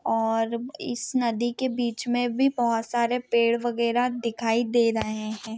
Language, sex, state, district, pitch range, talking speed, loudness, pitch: Hindi, female, Maharashtra, Pune, 225-245 Hz, 170 wpm, -25 LUFS, 235 Hz